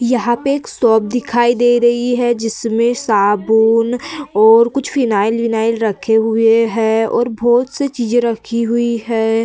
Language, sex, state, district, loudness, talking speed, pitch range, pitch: Hindi, female, Uttar Pradesh, Varanasi, -14 LUFS, 150 wpm, 225-240 Hz, 235 Hz